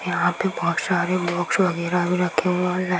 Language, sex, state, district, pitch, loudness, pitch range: Hindi, female, Bihar, Samastipur, 180 Hz, -22 LUFS, 175-180 Hz